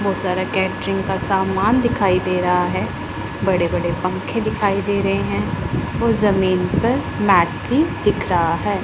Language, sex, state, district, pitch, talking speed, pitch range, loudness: Hindi, female, Punjab, Pathankot, 190 Hz, 165 wpm, 180-200 Hz, -19 LUFS